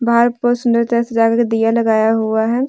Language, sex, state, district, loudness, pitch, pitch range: Hindi, female, Jharkhand, Deoghar, -15 LUFS, 235 Hz, 225-235 Hz